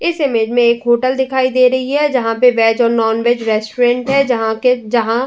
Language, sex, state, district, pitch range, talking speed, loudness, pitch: Hindi, female, Uttar Pradesh, Jyotiba Phule Nagar, 230-255 Hz, 240 wpm, -14 LUFS, 245 Hz